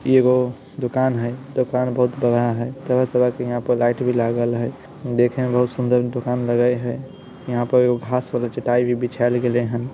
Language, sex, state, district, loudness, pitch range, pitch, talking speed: Hindi, male, Bihar, Samastipur, -20 LUFS, 120-125 Hz, 125 Hz, 185 wpm